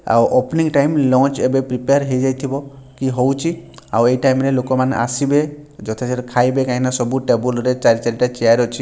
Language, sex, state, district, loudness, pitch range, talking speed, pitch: Odia, male, Odisha, Sambalpur, -17 LUFS, 125-135 Hz, 170 wpm, 130 Hz